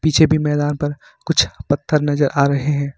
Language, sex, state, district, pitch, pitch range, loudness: Hindi, male, Jharkhand, Ranchi, 145 Hz, 140-150 Hz, -18 LUFS